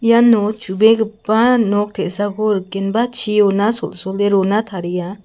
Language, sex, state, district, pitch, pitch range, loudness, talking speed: Garo, female, Meghalaya, South Garo Hills, 210 Hz, 195-225 Hz, -16 LUFS, 105 wpm